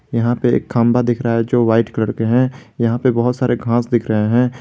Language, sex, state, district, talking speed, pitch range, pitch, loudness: Hindi, male, Jharkhand, Garhwa, 260 wpm, 115-125 Hz, 120 Hz, -16 LUFS